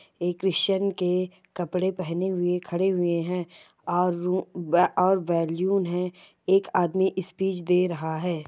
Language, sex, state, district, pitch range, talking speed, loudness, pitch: Hindi, female, Bihar, Jamui, 175-190 Hz, 150 wpm, -25 LUFS, 180 Hz